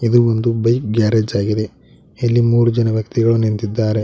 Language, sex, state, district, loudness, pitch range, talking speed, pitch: Kannada, male, Karnataka, Koppal, -16 LUFS, 110-120 Hz, 150 wpm, 115 Hz